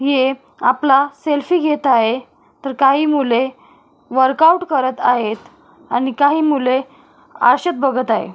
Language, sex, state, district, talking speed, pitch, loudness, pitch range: Marathi, female, Maharashtra, Solapur, 130 wpm, 275 Hz, -16 LUFS, 255-295 Hz